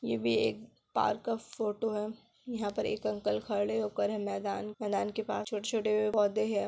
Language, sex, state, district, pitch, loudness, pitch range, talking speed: Hindi, female, Bihar, Kishanganj, 210 Hz, -33 LUFS, 205-220 Hz, 190 wpm